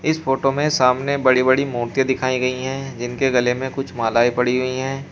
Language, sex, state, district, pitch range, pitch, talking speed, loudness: Hindi, male, Uttar Pradesh, Shamli, 125-135 Hz, 130 Hz, 210 wpm, -19 LUFS